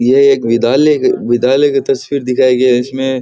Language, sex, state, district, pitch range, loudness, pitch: Rajasthani, male, Rajasthan, Churu, 125-140 Hz, -12 LUFS, 130 Hz